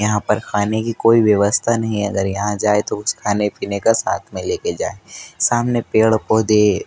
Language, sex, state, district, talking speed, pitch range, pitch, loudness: Hindi, male, Madhya Pradesh, Dhar, 200 wpm, 105-115 Hz, 110 Hz, -18 LUFS